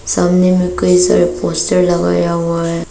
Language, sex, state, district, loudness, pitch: Hindi, female, Arunachal Pradesh, Papum Pare, -13 LUFS, 170 Hz